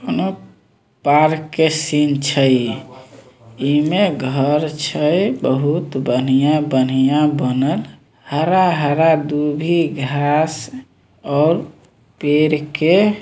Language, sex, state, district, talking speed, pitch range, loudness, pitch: Maithili, male, Bihar, Samastipur, 80 wpm, 135-155 Hz, -17 LUFS, 150 Hz